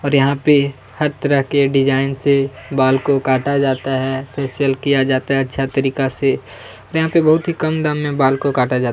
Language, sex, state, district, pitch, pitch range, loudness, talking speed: Hindi, male, Chhattisgarh, Kabirdham, 135 Hz, 135-145 Hz, -17 LUFS, 220 wpm